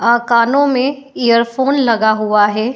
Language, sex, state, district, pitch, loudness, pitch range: Hindi, female, Uttar Pradesh, Etah, 235 Hz, -13 LUFS, 225-265 Hz